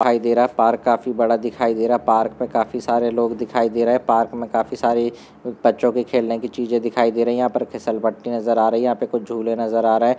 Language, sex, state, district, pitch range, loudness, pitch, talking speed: Hindi, male, Andhra Pradesh, Chittoor, 115-120 Hz, -20 LUFS, 120 Hz, 260 wpm